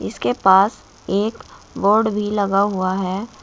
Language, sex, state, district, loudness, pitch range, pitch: Hindi, male, Uttar Pradesh, Shamli, -18 LUFS, 190-210 Hz, 200 Hz